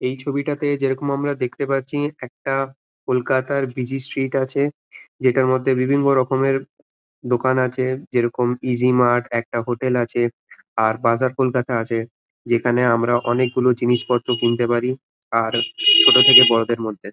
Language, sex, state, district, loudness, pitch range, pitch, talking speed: Bengali, male, West Bengal, Malda, -19 LUFS, 120-135 Hz, 125 Hz, 130 wpm